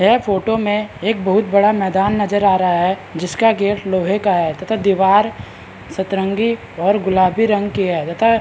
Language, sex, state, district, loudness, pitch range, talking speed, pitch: Hindi, male, Bihar, Madhepura, -16 LUFS, 185-210 Hz, 185 wpm, 195 Hz